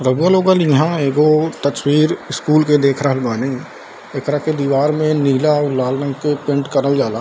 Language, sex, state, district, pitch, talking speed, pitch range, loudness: Hindi, male, Bihar, Darbhanga, 145 Hz, 185 wpm, 135-155 Hz, -16 LUFS